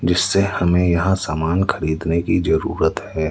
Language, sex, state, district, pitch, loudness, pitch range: Hindi, male, Madhya Pradesh, Umaria, 85 Hz, -19 LUFS, 80-95 Hz